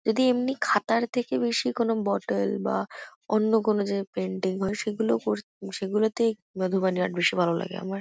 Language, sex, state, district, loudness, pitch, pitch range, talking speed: Bengali, female, West Bengal, Kolkata, -26 LUFS, 200 Hz, 185-225 Hz, 170 wpm